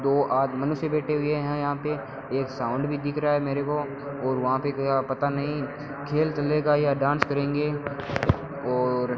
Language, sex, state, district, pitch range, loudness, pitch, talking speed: Hindi, male, Rajasthan, Bikaner, 135-145 Hz, -26 LUFS, 140 Hz, 190 wpm